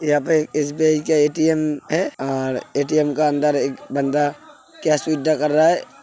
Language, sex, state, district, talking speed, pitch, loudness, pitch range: Hindi, male, Uttar Pradesh, Hamirpur, 180 wpm, 150 Hz, -19 LUFS, 145-155 Hz